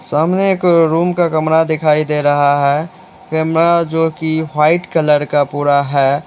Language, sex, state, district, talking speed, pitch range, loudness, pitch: Hindi, male, Uttar Pradesh, Lalitpur, 160 wpm, 145-170 Hz, -14 LUFS, 160 Hz